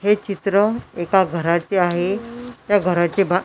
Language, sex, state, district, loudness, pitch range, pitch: Marathi, female, Maharashtra, Washim, -19 LUFS, 175-205 Hz, 195 Hz